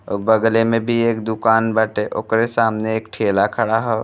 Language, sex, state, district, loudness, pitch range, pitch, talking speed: Bhojpuri, male, Uttar Pradesh, Deoria, -18 LUFS, 110-115 Hz, 110 Hz, 195 wpm